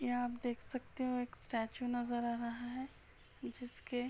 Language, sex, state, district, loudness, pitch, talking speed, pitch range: Hindi, male, Uttar Pradesh, Gorakhpur, -41 LUFS, 245 Hz, 190 wpm, 240-250 Hz